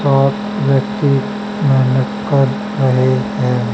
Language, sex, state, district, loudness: Hindi, male, Haryana, Charkhi Dadri, -15 LUFS